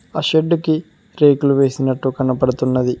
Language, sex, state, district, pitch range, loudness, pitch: Telugu, male, Telangana, Mahabubabad, 130-155 Hz, -17 LUFS, 135 Hz